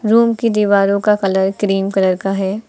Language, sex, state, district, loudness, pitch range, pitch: Hindi, female, Uttar Pradesh, Lucknow, -15 LUFS, 195-210 Hz, 200 Hz